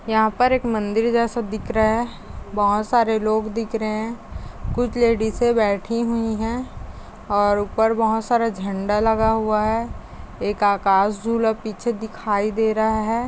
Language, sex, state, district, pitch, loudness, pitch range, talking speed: Hindi, female, Chhattisgarh, Kabirdham, 220 Hz, -21 LUFS, 215-230 Hz, 160 wpm